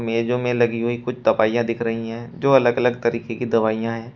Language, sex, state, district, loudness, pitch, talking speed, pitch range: Hindi, male, Uttar Pradesh, Shamli, -21 LUFS, 115 Hz, 230 wpm, 115-120 Hz